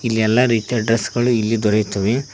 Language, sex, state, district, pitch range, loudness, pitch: Kannada, male, Karnataka, Koppal, 110-120 Hz, -18 LUFS, 115 Hz